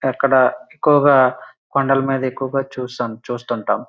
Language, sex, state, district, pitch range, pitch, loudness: Telugu, male, Andhra Pradesh, Srikakulam, 125-135 Hz, 130 Hz, -18 LUFS